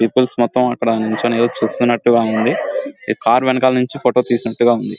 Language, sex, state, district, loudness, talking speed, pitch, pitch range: Telugu, male, Andhra Pradesh, Guntur, -16 LUFS, 170 wpm, 120 Hz, 115-130 Hz